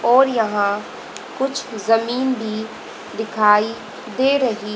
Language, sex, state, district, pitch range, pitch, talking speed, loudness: Hindi, female, Haryana, Jhajjar, 215-260 Hz, 225 Hz, 100 wpm, -19 LUFS